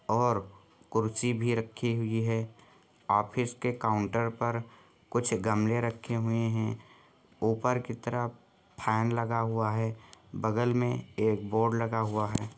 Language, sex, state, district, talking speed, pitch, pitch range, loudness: Hindi, male, Jharkhand, Sahebganj, 140 wpm, 115 Hz, 110-120 Hz, -30 LUFS